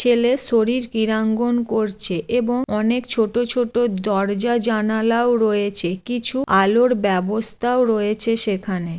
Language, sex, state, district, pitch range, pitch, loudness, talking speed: Bengali, female, West Bengal, Jalpaiguri, 210-240 Hz, 225 Hz, -19 LUFS, 105 wpm